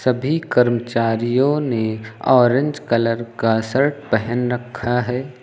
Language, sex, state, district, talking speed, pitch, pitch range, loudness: Hindi, male, Uttar Pradesh, Lucknow, 110 wpm, 125 Hz, 115-130 Hz, -19 LUFS